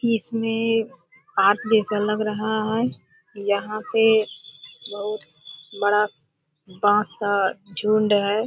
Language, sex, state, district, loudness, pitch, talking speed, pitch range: Hindi, female, Bihar, Purnia, -22 LUFS, 210 Hz, 105 wpm, 195-220 Hz